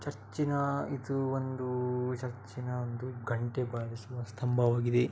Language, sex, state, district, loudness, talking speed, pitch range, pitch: Kannada, male, Karnataka, Dakshina Kannada, -34 LUFS, 105 wpm, 120-130 Hz, 125 Hz